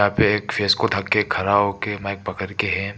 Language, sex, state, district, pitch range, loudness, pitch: Hindi, male, Arunachal Pradesh, Papum Pare, 100-105 Hz, -21 LUFS, 100 Hz